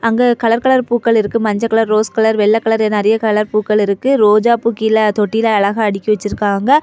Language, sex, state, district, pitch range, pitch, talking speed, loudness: Tamil, female, Tamil Nadu, Kanyakumari, 210-230 Hz, 220 Hz, 185 wpm, -14 LUFS